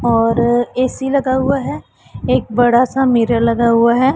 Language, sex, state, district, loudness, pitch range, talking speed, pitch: Hindi, female, Punjab, Pathankot, -15 LUFS, 230-255 Hz, 175 wpm, 235 Hz